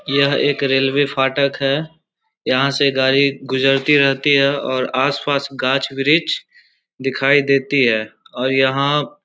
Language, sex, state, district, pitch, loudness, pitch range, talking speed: Hindi, male, Bihar, Samastipur, 140 Hz, -17 LUFS, 135-145 Hz, 130 wpm